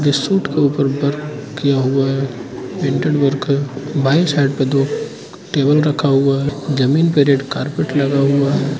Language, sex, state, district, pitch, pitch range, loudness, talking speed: Hindi, male, Arunachal Pradesh, Lower Dibang Valley, 140 Hz, 135-145 Hz, -16 LUFS, 175 wpm